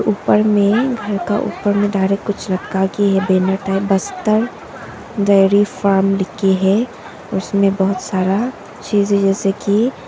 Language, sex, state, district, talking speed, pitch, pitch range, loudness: Hindi, female, Arunachal Pradesh, Papum Pare, 145 wpm, 200 Hz, 195-205 Hz, -16 LUFS